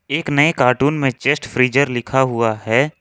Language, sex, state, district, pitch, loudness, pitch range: Hindi, male, Jharkhand, Ranchi, 135 Hz, -17 LUFS, 125-145 Hz